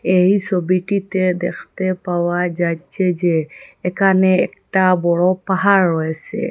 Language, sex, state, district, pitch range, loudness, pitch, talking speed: Bengali, female, Assam, Hailakandi, 175-190 Hz, -17 LUFS, 185 Hz, 100 wpm